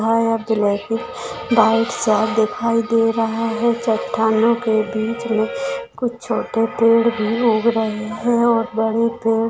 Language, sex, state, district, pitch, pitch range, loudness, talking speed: Hindi, female, Maharashtra, Dhule, 225 Hz, 220-235 Hz, -18 LUFS, 120 wpm